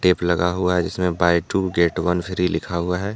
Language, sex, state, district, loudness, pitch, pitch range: Hindi, male, Jharkhand, Deoghar, -21 LUFS, 90 Hz, 85-90 Hz